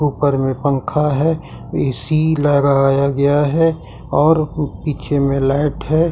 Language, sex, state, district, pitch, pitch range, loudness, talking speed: Hindi, male, Jharkhand, Ranchi, 145 Hz, 140-155 Hz, -16 LUFS, 135 wpm